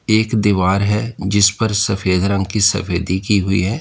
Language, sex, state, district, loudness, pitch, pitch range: Hindi, male, Uttar Pradesh, Lalitpur, -16 LUFS, 100 Hz, 95-105 Hz